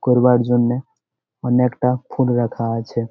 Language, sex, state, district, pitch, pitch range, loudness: Bengali, male, West Bengal, Jalpaiguri, 125 Hz, 120-125 Hz, -19 LUFS